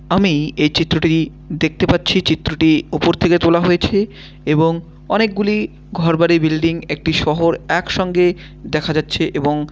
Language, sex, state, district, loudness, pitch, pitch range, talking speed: Bengali, male, West Bengal, Malda, -16 LUFS, 165 Hz, 155-175 Hz, 125 wpm